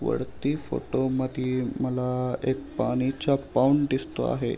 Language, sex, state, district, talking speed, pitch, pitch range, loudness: Marathi, male, Maharashtra, Aurangabad, 120 wpm, 130 Hz, 125-135 Hz, -26 LUFS